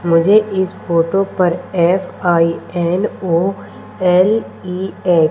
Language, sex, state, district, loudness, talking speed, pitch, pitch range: Hindi, female, Madhya Pradesh, Umaria, -16 LUFS, 80 wpm, 180 Hz, 170-190 Hz